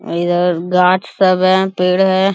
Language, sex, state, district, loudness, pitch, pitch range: Hindi, male, Bihar, Bhagalpur, -14 LUFS, 185 Hz, 180-190 Hz